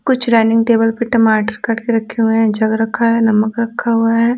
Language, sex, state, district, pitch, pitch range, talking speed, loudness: Hindi, female, Bihar, Patna, 225 Hz, 225-230 Hz, 230 wpm, -14 LUFS